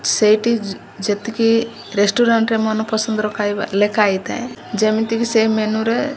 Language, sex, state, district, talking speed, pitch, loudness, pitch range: Odia, female, Odisha, Malkangiri, 125 wpm, 220 Hz, -18 LUFS, 210-225 Hz